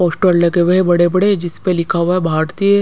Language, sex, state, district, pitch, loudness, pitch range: Hindi, female, Punjab, Pathankot, 175 Hz, -14 LUFS, 170-185 Hz